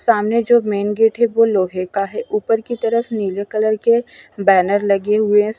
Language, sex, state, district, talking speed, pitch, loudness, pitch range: Hindi, female, Punjab, Fazilka, 225 wpm, 215 Hz, -17 LUFS, 200-230 Hz